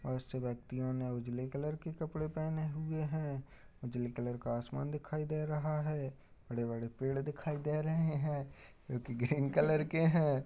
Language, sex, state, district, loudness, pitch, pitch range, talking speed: Hindi, male, Uttar Pradesh, Budaun, -37 LUFS, 140 Hz, 125-155 Hz, 160 wpm